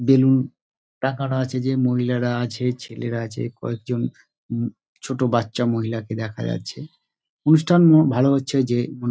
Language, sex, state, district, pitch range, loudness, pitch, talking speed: Bengali, male, West Bengal, Dakshin Dinajpur, 120-135 Hz, -21 LUFS, 125 Hz, 125 wpm